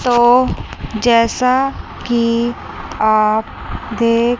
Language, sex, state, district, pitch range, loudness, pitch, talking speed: Hindi, female, Chandigarh, Chandigarh, 230-245 Hz, -15 LUFS, 235 Hz, 70 wpm